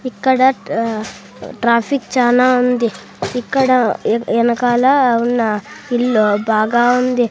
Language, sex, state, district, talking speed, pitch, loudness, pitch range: Telugu, female, Andhra Pradesh, Sri Satya Sai, 100 wpm, 240 Hz, -15 LUFS, 230-255 Hz